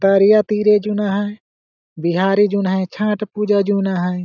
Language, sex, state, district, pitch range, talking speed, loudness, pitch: Sadri, male, Chhattisgarh, Jashpur, 185-210 Hz, 155 wpm, -17 LUFS, 200 Hz